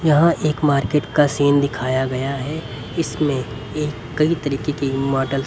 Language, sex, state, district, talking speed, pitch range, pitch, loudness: Hindi, male, Haryana, Rohtak, 145 wpm, 135-150 Hz, 140 Hz, -20 LUFS